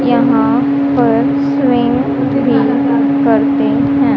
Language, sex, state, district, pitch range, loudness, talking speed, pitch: Hindi, female, Haryana, Rohtak, 265-280 Hz, -12 LUFS, 85 wpm, 275 Hz